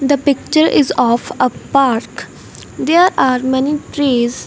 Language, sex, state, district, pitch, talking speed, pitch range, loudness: English, female, Punjab, Fazilka, 275 Hz, 135 wpm, 250-290 Hz, -14 LUFS